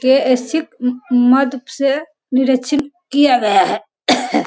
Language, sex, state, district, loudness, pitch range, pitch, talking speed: Hindi, female, Bihar, Sitamarhi, -16 LUFS, 255-290 Hz, 265 Hz, 65 wpm